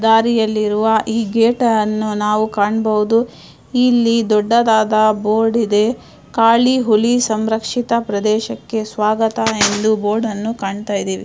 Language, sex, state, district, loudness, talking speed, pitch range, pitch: Kannada, female, Karnataka, Dharwad, -16 LUFS, 105 wpm, 215-230 Hz, 220 Hz